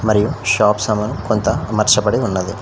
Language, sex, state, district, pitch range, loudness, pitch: Telugu, male, Telangana, Mahabubabad, 105-110 Hz, -16 LUFS, 105 Hz